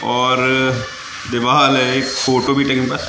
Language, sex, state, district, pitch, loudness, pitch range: Hindi, male, Madhya Pradesh, Katni, 130 Hz, -15 LUFS, 125-135 Hz